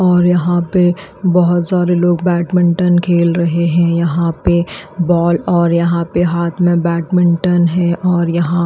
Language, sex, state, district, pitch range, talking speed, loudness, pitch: Hindi, female, Haryana, Rohtak, 170-180 Hz, 160 wpm, -14 LUFS, 175 Hz